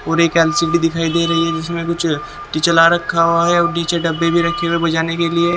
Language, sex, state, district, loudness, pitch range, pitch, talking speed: Hindi, male, Haryana, Jhajjar, -16 LUFS, 165-170 Hz, 170 Hz, 235 wpm